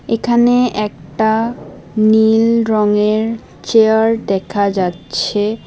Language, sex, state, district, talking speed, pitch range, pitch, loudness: Bengali, female, Assam, Hailakandi, 75 wpm, 210-225 Hz, 220 Hz, -14 LUFS